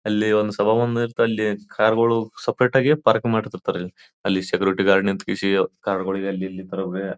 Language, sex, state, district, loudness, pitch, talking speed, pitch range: Kannada, male, Karnataka, Bijapur, -21 LUFS, 105 Hz, 165 wpm, 95-115 Hz